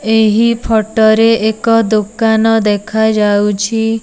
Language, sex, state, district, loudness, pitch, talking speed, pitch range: Odia, female, Odisha, Nuapada, -12 LUFS, 220 Hz, 90 wpm, 215-225 Hz